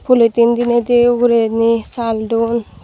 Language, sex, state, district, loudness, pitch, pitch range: Chakma, female, Tripura, Dhalai, -14 LUFS, 235 Hz, 230-240 Hz